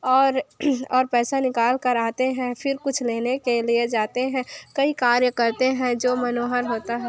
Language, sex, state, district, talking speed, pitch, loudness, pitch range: Hindi, female, Chhattisgarh, Kabirdham, 175 wpm, 250 Hz, -22 LUFS, 240-260 Hz